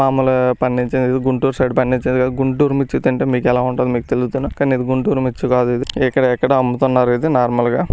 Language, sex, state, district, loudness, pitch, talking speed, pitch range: Telugu, male, Andhra Pradesh, Srikakulam, -16 LUFS, 130 Hz, 160 wpm, 125-135 Hz